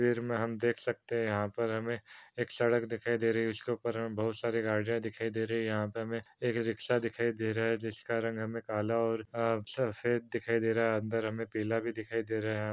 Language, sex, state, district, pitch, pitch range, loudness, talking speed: Hindi, male, Uttar Pradesh, Varanasi, 115 Hz, 110-115 Hz, -33 LUFS, 270 wpm